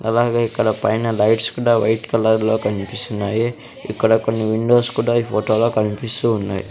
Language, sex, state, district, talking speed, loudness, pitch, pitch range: Telugu, male, Andhra Pradesh, Sri Satya Sai, 145 wpm, -18 LUFS, 110 Hz, 110-115 Hz